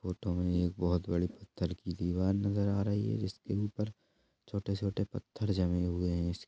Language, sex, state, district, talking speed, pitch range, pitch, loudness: Hindi, male, Chhattisgarh, Kabirdham, 185 wpm, 90-100 Hz, 95 Hz, -34 LUFS